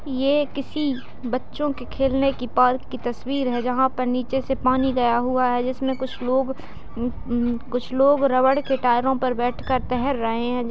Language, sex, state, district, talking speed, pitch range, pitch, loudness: Hindi, female, Bihar, Madhepura, 175 wpm, 245-265 Hz, 255 Hz, -22 LUFS